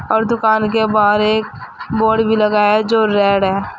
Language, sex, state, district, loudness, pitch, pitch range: Hindi, female, Uttar Pradesh, Saharanpur, -14 LUFS, 215 Hz, 210-220 Hz